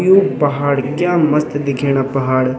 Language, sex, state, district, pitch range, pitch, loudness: Garhwali, male, Uttarakhand, Tehri Garhwal, 135-150 Hz, 140 Hz, -16 LUFS